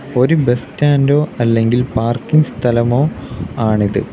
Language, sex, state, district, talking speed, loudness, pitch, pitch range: Malayalam, male, Kerala, Kollam, 100 wpm, -15 LUFS, 125 Hz, 115-145 Hz